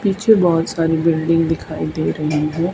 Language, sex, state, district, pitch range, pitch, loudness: Hindi, female, Haryana, Charkhi Dadri, 160-170 Hz, 165 Hz, -17 LUFS